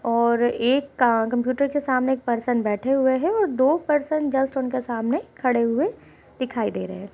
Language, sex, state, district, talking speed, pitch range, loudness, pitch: Hindi, female, Uttar Pradesh, Gorakhpur, 195 wpm, 235-280 Hz, -22 LUFS, 255 Hz